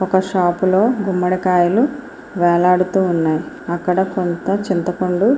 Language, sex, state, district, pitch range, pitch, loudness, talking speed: Telugu, female, Andhra Pradesh, Srikakulam, 175-195 Hz, 185 Hz, -17 LUFS, 110 wpm